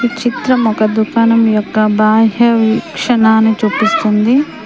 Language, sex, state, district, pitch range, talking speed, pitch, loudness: Telugu, female, Telangana, Mahabubabad, 215-235 Hz, 90 wpm, 220 Hz, -12 LUFS